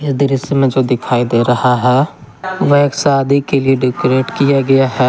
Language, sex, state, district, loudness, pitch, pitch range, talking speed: Hindi, male, Jharkhand, Garhwa, -13 LUFS, 135 Hz, 125-140 Hz, 200 wpm